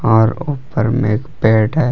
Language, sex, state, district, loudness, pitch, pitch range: Hindi, male, Jharkhand, Palamu, -16 LUFS, 115 Hz, 110-140 Hz